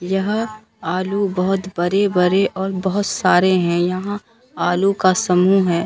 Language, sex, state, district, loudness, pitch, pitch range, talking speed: Hindi, female, Bihar, Katihar, -18 LUFS, 190 Hz, 180-200 Hz, 135 wpm